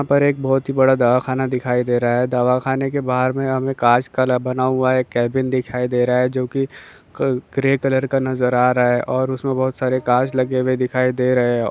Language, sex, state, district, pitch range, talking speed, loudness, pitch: Hindi, male, Bihar, Kishanganj, 125-130 Hz, 230 wpm, -18 LUFS, 130 Hz